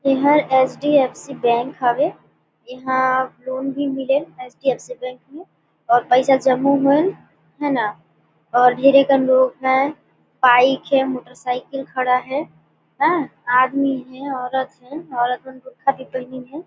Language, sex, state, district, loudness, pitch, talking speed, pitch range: Surgujia, female, Chhattisgarh, Sarguja, -19 LUFS, 265 Hz, 140 wpm, 255-275 Hz